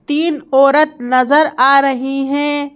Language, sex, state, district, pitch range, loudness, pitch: Hindi, female, Madhya Pradesh, Bhopal, 270-295 Hz, -13 LUFS, 280 Hz